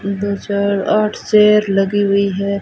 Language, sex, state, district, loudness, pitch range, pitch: Hindi, female, Rajasthan, Bikaner, -15 LUFS, 200-210 Hz, 200 Hz